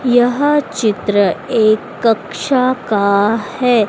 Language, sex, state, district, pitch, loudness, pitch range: Hindi, female, Madhya Pradesh, Dhar, 225 Hz, -15 LUFS, 210-250 Hz